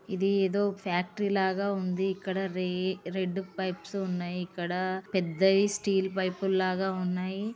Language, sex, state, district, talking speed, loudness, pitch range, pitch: Telugu, female, Andhra Pradesh, Krishna, 125 wpm, -30 LUFS, 185-195 Hz, 190 Hz